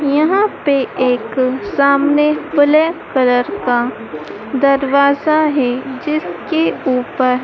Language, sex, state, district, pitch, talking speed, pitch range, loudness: Hindi, female, Madhya Pradesh, Dhar, 280 Hz, 90 wpm, 255-305 Hz, -15 LUFS